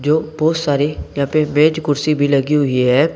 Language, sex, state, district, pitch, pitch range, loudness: Hindi, male, Uttar Pradesh, Saharanpur, 150 Hz, 140-155 Hz, -16 LUFS